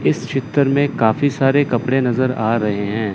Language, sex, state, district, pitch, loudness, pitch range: Hindi, male, Chandigarh, Chandigarh, 125 Hz, -17 LUFS, 110-135 Hz